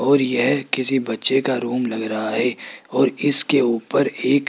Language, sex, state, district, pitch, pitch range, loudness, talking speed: Hindi, male, Rajasthan, Jaipur, 130 Hz, 115-135 Hz, -20 LUFS, 175 wpm